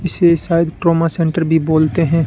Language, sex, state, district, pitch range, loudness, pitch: Hindi, male, Rajasthan, Bikaner, 160-170 Hz, -15 LUFS, 165 Hz